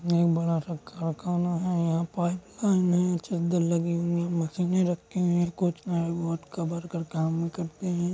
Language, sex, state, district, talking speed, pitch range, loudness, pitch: Hindi, male, Uttar Pradesh, Jalaun, 175 wpm, 170-180 Hz, -28 LUFS, 170 Hz